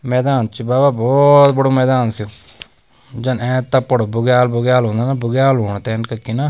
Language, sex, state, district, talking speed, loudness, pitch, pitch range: Garhwali, male, Uttarakhand, Tehri Garhwal, 165 wpm, -15 LUFS, 125 Hz, 115-130 Hz